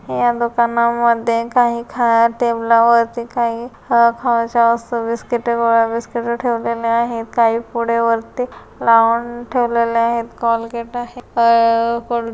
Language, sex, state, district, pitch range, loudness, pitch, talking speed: Marathi, female, Maharashtra, Solapur, 230-235 Hz, -16 LUFS, 235 Hz, 120 wpm